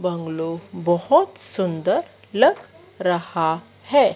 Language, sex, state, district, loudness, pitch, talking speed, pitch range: Hindi, female, Madhya Pradesh, Dhar, -22 LUFS, 175 Hz, 85 wpm, 165-195 Hz